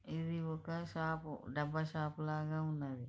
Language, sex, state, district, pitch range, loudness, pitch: Telugu, female, Andhra Pradesh, Krishna, 150-160 Hz, -41 LUFS, 155 Hz